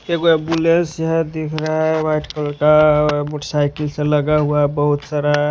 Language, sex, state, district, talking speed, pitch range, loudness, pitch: Hindi, male, Maharashtra, Washim, 195 wpm, 150-160 Hz, -17 LUFS, 150 Hz